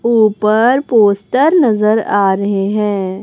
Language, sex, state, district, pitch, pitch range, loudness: Hindi, male, Chhattisgarh, Raipur, 215 Hz, 200-230 Hz, -13 LUFS